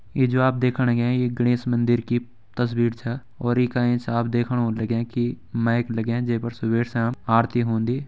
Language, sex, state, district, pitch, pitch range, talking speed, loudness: Hindi, male, Uttarakhand, Tehri Garhwal, 120 Hz, 115-120 Hz, 210 wpm, -23 LUFS